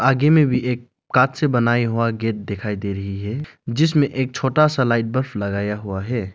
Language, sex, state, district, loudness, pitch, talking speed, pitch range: Hindi, male, Arunachal Pradesh, Lower Dibang Valley, -20 LUFS, 120 Hz, 210 wpm, 105-135 Hz